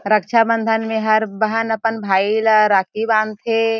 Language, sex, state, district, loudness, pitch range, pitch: Chhattisgarhi, female, Chhattisgarh, Jashpur, -17 LUFS, 215-225 Hz, 220 Hz